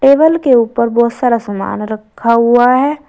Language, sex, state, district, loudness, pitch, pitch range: Hindi, female, Uttar Pradesh, Saharanpur, -12 LUFS, 235 Hz, 230-270 Hz